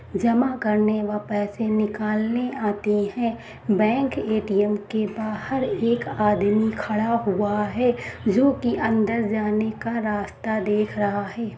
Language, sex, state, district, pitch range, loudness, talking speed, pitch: Hindi, female, Bihar, Saharsa, 210-230 Hz, -23 LUFS, 130 wpm, 215 Hz